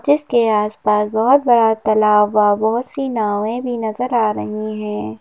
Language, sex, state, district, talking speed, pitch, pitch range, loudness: Hindi, female, Madhya Pradesh, Bhopal, 160 wpm, 215 Hz, 210-240 Hz, -17 LUFS